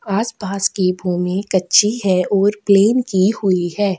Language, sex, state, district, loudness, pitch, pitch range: Hindi, female, Chhattisgarh, Kabirdham, -16 LUFS, 195 Hz, 185-205 Hz